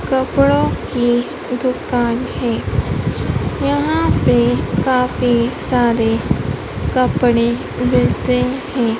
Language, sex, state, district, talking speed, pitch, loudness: Hindi, female, Madhya Pradesh, Dhar, 75 wpm, 235 Hz, -17 LUFS